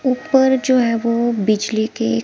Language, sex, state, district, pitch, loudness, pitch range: Hindi, female, Himachal Pradesh, Shimla, 235 Hz, -17 LUFS, 220-255 Hz